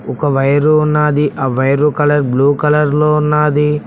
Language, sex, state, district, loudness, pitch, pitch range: Telugu, male, Telangana, Mahabubabad, -13 LUFS, 150 Hz, 140-150 Hz